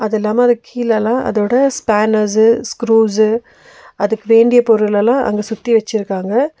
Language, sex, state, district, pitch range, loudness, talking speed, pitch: Tamil, female, Tamil Nadu, Nilgiris, 215-240 Hz, -14 LUFS, 125 wpm, 225 Hz